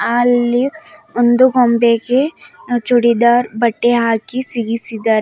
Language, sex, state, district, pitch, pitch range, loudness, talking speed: Kannada, female, Karnataka, Bidar, 240 Hz, 235-250 Hz, -14 LUFS, 80 wpm